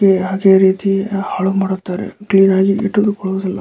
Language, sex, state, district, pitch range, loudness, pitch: Kannada, male, Karnataka, Dharwad, 190-200 Hz, -15 LUFS, 195 Hz